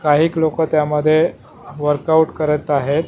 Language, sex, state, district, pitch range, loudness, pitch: Marathi, male, Maharashtra, Mumbai Suburban, 150-160 Hz, -17 LUFS, 155 Hz